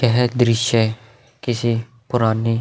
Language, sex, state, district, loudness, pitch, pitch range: Hindi, male, Uttar Pradesh, Hamirpur, -19 LUFS, 115 Hz, 115-120 Hz